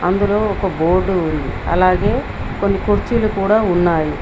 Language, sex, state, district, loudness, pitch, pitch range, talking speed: Telugu, female, Telangana, Mahabubabad, -17 LUFS, 190 Hz, 175-205 Hz, 130 wpm